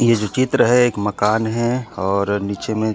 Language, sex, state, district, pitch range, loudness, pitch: Chhattisgarhi, male, Chhattisgarh, Korba, 100-120 Hz, -18 LUFS, 110 Hz